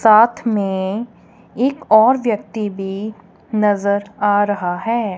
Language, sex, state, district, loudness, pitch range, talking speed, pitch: Hindi, female, Punjab, Kapurthala, -17 LUFS, 200-225 Hz, 115 wpm, 210 Hz